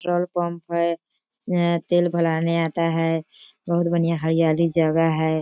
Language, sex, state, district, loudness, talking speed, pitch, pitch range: Hindi, female, Bihar, East Champaran, -22 LUFS, 155 wpm, 170 Hz, 165-175 Hz